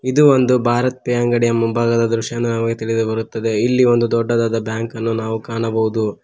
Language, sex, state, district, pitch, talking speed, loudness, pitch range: Kannada, male, Karnataka, Koppal, 115 Hz, 125 wpm, -17 LUFS, 115-120 Hz